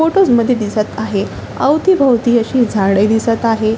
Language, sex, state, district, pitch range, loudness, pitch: Marathi, female, Maharashtra, Chandrapur, 215-255 Hz, -14 LUFS, 230 Hz